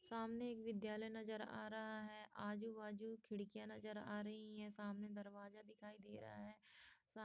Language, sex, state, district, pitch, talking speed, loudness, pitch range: Hindi, female, Jharkhand, Sahebganj, 215 Hz, 165 wpm, -51 LUFS, 210-220 Hz